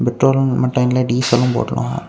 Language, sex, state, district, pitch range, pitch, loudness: Tamil, male, Tamil Nadu, Kanyakumari, 120-130 Hz, 125 Hz, -16 LUFS